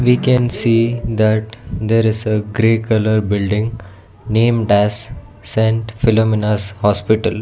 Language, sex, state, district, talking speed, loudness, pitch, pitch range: English, male, Karnataka, Bangalore, 120 wpm, -16 LUFS, 110 Hz, 105-115 Hz